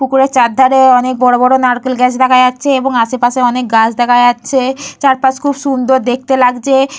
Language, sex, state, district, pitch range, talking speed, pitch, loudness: Bengali, female, West Bengal, Purulia, 245-265 Hz, 190 wpm, 255 Hz, -11 LUFS